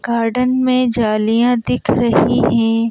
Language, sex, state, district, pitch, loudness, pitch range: Hindi, female, Madhya Pradesh, Bhopal, 235 Hz, -15 LUFS, 225-250 Hz